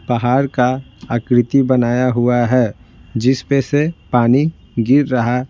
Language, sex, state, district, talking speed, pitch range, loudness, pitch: Hindi, male, Bihar, Patna, 130 wpm, 120-135 Hz, -16 LUFS, 125 Hz